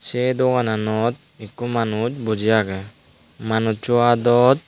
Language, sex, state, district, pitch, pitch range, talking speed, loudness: Chakma, male, Tripura, Dhalai, 115 Hz, 110-120 Hz, 105 wpm, -20 LUFS